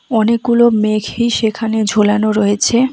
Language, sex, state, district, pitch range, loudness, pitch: Bengali, female, West Bengal, Alipurduar, 215-235 Hz, -14 LUFS, 220 Hz